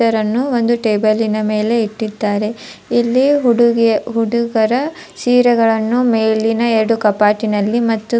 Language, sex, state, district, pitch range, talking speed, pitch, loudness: Kannada, female, Karnataka, Dharwad, 220-235 Hz, 100 wpm, 225 Hz, -15 LUFS